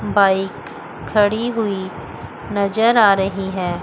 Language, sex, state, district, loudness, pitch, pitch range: Hindi, female, Chandigarh, Chandigarh, -18 LUFS, 195 Hz, 190-210 Hz